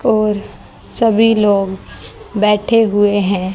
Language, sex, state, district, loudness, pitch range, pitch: Hindi, female, Haryana, Rohtak, -14 LUFS, 205-225 Hz, 210 Hz